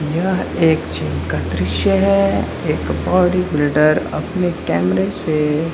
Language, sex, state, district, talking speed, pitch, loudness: Hindi, male, Bihar, Saran, 125 wpm, 145 Hz, -17 LUFS